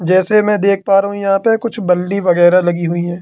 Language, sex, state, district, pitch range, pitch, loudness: Hindi, male, Madhya Pradesh, Katni, 175-200 Hz, 195 Hz, -13 LUFS